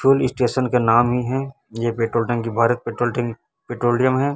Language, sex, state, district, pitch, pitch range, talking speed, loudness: Hindi, male, Chhattisgarh, Raipur, 120 Hz, 115-130 Hz, 195 wpm, -20 LUFS